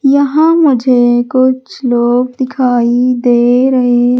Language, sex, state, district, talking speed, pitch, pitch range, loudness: Hindi, female, Madhya Pradesh, Umaria, 100 wpm, 250 Hz, 245-260 Hz, -11 LUFS